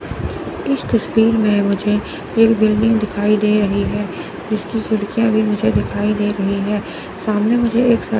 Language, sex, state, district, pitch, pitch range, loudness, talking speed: Hindi, female, Chandigarh, Chandigarh, 210 Hz, 205-225 Hz, -17 LUFS, 160 wpm